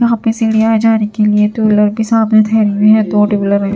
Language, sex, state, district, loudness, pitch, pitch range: Hindi, female, Bihar, Katihar, -11 LUFS, 215 Hz, 210-220 Hz